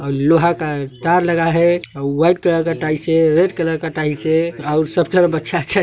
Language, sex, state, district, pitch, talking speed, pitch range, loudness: Hindi, male, Chhattisgarh, Sarguja, 165 Hz, 205 wpm, 155-170 Hz, -16 LUFS